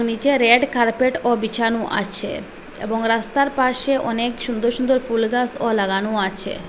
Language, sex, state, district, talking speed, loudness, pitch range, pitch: Bengali, female, Assam, Hailakandi, 125 wpm, -19 LUFS, 225-255 Hz, 235 Hz